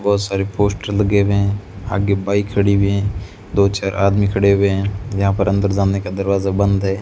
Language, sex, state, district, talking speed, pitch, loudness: Hindi, male, Rajasthan, Bikaner, 205 wpm, 100 Hz, -17 LUFS